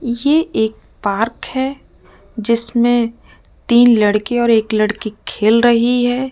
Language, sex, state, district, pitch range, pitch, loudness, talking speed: Hindi, female, Rajasthan, Jaipur, 220-245 Hz, 235 Hz, -15 LUFS, 125 wpm